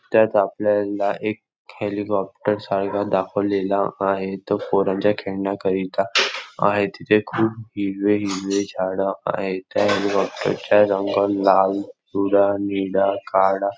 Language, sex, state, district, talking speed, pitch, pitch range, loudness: Marathi, male, Maharashtra, Nagpur, 110 wpm, 100 Hz, 95-105 Hz, -21 LUFS